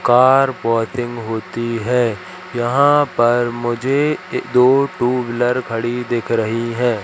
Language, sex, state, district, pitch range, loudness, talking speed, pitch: Hindi, male, Madhya Pradesh, Katni, 115-130 Hz, -17 LUFS, 120 wpm, 120 Hz